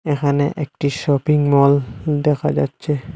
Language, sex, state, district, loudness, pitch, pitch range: Bengali, male, Assam, Hailakandi, -18 LUFS, 145 Hz, 140-150 Hz